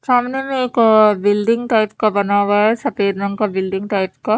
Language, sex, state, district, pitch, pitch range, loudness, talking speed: Hindi, female, Haryana, Charkhi Dadri, 215 Hz, 200-230 Hz, -16 LUFS, 220 wpm